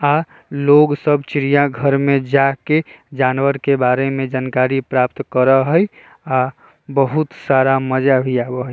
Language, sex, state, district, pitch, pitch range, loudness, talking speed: Bajjika, male, Bihar, Vaishali, 135 Hz, 130-145 Hz, -16 LUFS, 150 wpm